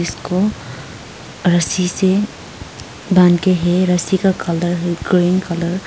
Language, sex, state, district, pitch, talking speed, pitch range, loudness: Hindi, female, Arunachal Pradesh, Papum Pare, 180 Hz, 110 wpm, 175-190 Hz, -16 LUFS